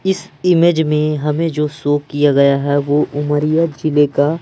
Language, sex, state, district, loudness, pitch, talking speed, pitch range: Hindi, male, Madhya Pradesh, Umaria, -15 LUFS, 150 Hz, 175 wpm, 145-160 Hz